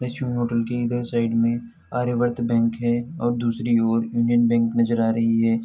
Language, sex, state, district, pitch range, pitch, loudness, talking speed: Hindi, male, Uttar Pradesh, Etah, 115-120 Hz, 115 Hz, -22 LUFS, 190 wpm